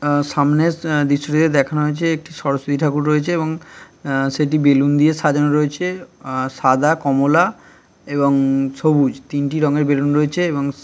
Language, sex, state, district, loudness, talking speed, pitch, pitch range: Bengali, male, West Bengal, Kolkata, -17 LUFS, 120 wpm, 145 Hz, 140-155 Hz